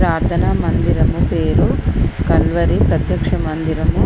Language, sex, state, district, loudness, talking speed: Telugu, female, Telangana, Komaram Bheem, -16 LUFS, 90 wpm